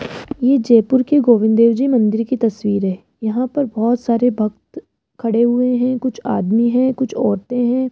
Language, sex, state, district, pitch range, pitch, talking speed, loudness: Hindi, female, Rajasthan, Jaipur, 225-255 Hz, 240 Hz, 180 wpm, -16 LUFS